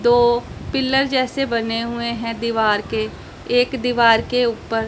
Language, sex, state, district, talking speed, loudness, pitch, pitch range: Hindi, female, Punjab, Pathankot, 150 wpm, -19 LUFS, 235 Hz, 230-245 Hz